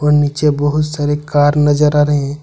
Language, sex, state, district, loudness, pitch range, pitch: Hindi, male, Jharkhand, Ranchi, -14 LUFS, 145-150 Hz, 145 Hz